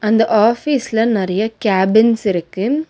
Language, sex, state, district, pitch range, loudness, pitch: Tamil, female, Tamil Nadu, Nilgiris, 200-230 Hz, -15 LUFS, 220 Hz